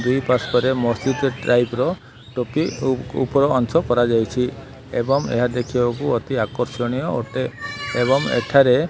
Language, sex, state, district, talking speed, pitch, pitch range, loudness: Odia, male, Odisha, Malkangiri, 130 wpm, 125 Hz, 120-135 Hz, -20 LUFS